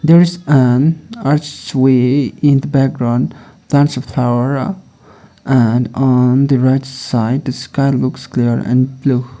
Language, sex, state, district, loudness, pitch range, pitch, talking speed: English, male, Sikkim, Gangtok, -14 LUFS, 125-140 Hz, 130 Hz, 145 wpm